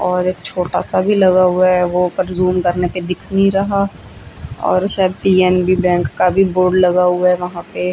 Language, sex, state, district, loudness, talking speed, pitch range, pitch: Hindi, female, Chandigarh, Chandigarh, -15 LUFS, 210 wpm, 180-185 Hz, 180 Hz